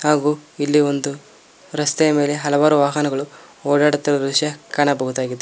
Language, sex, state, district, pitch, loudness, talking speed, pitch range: Kannada, male, Karnataka, Koppal, 145 Hz, -18 LUFS, 110 wpm, 140-150 Hz